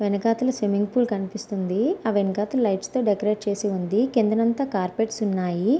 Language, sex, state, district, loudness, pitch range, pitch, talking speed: Telugu, female, Andhra Pradesh, Anantapur, -24 LUFS, 200-230 Hz, 210 Hz, 145 wpm